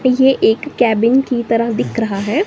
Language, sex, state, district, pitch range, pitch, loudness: Hindi, female, Himachal Pradesh, Shimla, 225-265 Hz, 235 Hz, -15 LUFS